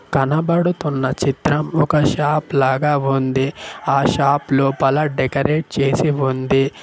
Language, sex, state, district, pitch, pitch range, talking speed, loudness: Telugu, male, Telangana, Mahabubabad, 140 Hz, 135-150 Hz, 105 wpm, -18 LUFS